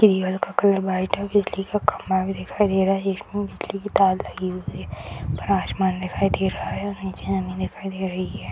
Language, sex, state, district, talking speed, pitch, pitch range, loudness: Hindi, female, Bihar, Samastipur, 230 wpm, 190 Hz, 130-195 Hz, -24 LUFS